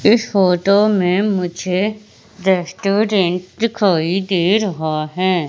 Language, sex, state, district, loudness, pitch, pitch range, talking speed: Hindi, female, Madhya Pradesh, Katni, -17 LUFS, 190 Hz, 180-205 Hz, 100 wpm